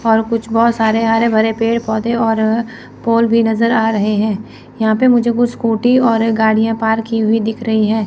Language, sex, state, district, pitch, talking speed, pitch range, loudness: Hindi, female, Chandigarh, Chandigarh, 225 Hz, 210 wpm, 220-230 Hz, -14 LUFS